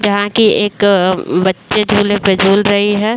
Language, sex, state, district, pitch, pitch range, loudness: Hindi, female, Uttar Pradesh, Jyotiba Phule Nagar, 205 Hz, 195-210 Hz, -12 LUFS